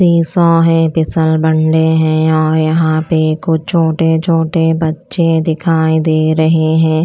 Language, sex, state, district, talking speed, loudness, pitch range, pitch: Hindi, female, Chandigarh, Chandigarh, 120 wpm, -12 LUFS, 160-165 Hz, 160 Hz